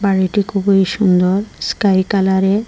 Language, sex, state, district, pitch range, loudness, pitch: Bengali, female, Assam, Hailakandi, 190-200 Hz, -15 LUFS, 195 Hz